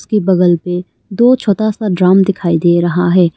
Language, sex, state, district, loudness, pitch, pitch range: Hindi, female, Arunachal Pradesh, Longding, -12 LUFS, 185 Hz, 175-205 Hz